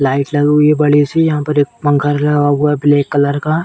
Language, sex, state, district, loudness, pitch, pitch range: Hindi, female, Uttar Pradesh, Etah, -13 LUFS, 145 Hz, 145-150 Hz